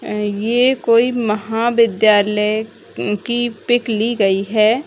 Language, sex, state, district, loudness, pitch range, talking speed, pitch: Hindi, male, Bihar, Bhagalpur, -16 LUFS, 210-240 Hz, 100 wpm, 220 Hz